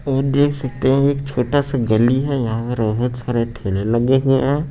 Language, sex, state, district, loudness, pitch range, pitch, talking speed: Hindi, male, Chandigarh, Chandigarh, -18 LUFS, 120-140 Hz, 130 Hz, 180 wpm